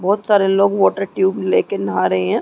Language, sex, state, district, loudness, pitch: Hindi, female, Chhattisgarh, Rajnandgaon, -16 LUFS, 195 Hz